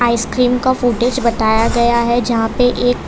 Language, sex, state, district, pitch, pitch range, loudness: Hindi, female, Gujarat, Valsad, 240 Hz, 235-245 Hz, -15 LUFS